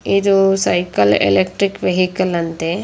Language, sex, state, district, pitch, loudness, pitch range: Kannada, female, Karnataka, Dakshina Kannada, 180 Hz, -16 LUFS, 165-195 Hz